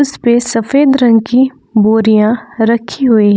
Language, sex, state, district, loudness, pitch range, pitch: Hindi, female, Jharkhand, Palamu, -11 LUFS, 220-255 Hz, 230 Hz